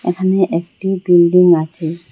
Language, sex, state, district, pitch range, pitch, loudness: Bengali, female, Assam, Hailakandi, 170-185 Hz, 175 Hz, -14 LUFS